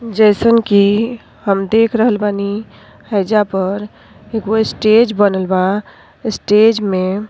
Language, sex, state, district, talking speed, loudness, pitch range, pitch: Bhojpuri, female, Uttar Pradesh, Ghazipur, 125 wpm, -14 LUFS, 200-225 Hz, 210 Hz